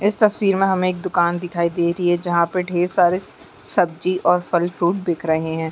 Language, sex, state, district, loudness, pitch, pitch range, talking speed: Hindi, female, Chhattisgarh, Bilaspur, -19 LUFS, 175 Hz, 170-185 Hz, 230 wpm